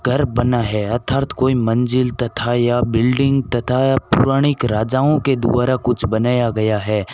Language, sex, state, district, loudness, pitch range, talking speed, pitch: Hindi, male, Rajasthan, Bikaner, -17 LUFS, 115-130 Hz, 150 wpm, 120 Hz